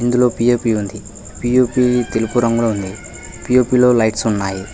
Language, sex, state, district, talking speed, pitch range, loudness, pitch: Telugu, male, Telangana, Hyderabad, 140 wpm, 105-125 Hz, -16 LUFS, 115 Hz